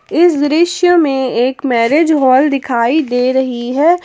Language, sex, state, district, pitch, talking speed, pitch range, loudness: Hindi, female, Jharkhand, Palamu, 275 Hz, 150 wpm, 255-325 Hz, -12 LUFS